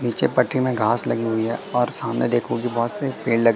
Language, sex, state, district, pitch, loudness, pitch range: Hindi, male, Madhya Pradesh, Katni, 120 Hz, -20 LUFS, 115-125 Hz